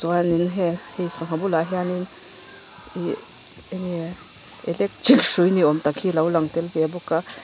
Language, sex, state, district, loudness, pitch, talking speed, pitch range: Mizo, female, Mizoram, Aizawl, -22 LUFS, 170 Hz, 160 wpm, 165-180 Hz